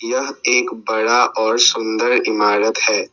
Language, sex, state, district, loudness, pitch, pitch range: Hindi, male, Assam, Sonitpur, -16 LUFS, 120 Hz, 110-130 Hz